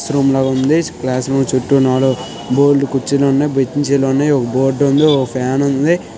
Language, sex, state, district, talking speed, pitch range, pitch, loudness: Telugu, male, Andhra Pradesh, Srikakulam, 185 wpm, 130-140 Hz, 135 Hz, -14 LUFS